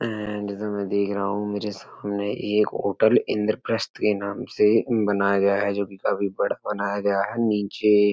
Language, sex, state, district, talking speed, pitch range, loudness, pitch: Hindi, male, Uttar Pradesh, Etah, 190 wpm, 100-105 Hz, -24 LUFS, 105 Hz